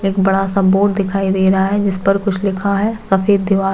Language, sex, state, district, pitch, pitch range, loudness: Hindi, female, Chhattisgarh, Jashpur, 195 Hz, 195-200 Hz, -15 LUFS